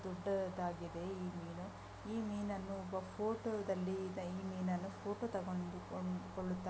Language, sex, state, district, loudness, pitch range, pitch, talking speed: Kannada, female, Karnataka, Gulbarga, -43 LUFS, 180-195 Hz, 190 Hz, 115 wpm